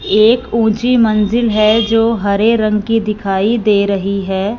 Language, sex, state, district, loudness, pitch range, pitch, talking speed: Hindi, female, Punjab, Fazilka, -13 LUFS, 205-225 Hz, 215 Hz, 155 wpm